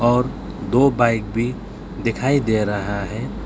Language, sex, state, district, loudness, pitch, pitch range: Hindi, male, West Bengal, Alipurduar, -20 LUFS, 115 Hz, 105-125 Hz